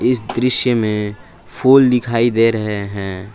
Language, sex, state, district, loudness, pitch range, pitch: Hindi, male, Jharkhand, Palamu, -15 LUFS, 105-125 Hz, 115 Hz